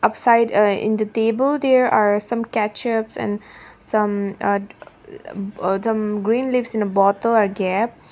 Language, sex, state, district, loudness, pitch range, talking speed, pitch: English, female, Nagaland, Dimapur, -19 LUFS, 200-230 Hz, 155 wpm, 215 Hz